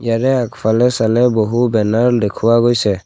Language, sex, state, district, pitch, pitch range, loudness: Assamese, male, Assam, Kamrup Metropolitan, 115 Hz, 110-120 Hz, -14 LUFS